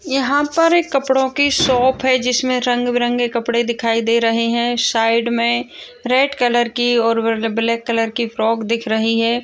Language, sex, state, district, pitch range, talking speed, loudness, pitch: Hindi, female, Chhattisgarh, Kabirdham, 230-260 Hz, 170 wpm, -17 LUFS, 240 Hz